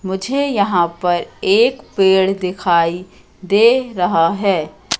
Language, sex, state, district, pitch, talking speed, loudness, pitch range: Hindi, female, Madhya Pradesh, Katni, 190 Hz, 110 wpm, -16 LUFS, 180-230 Hz